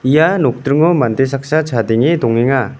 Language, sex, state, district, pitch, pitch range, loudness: Garo, male, Meghalaya, West Garo Hills, 135 Hz, 120-155 Hz, -14 LUFS